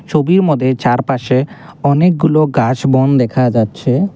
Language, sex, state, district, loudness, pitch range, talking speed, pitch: Bengali, male, Assam, Kamrup Metropolitan, -13 LUFS, 130-165 Hz, 115 wpm, 140 Hz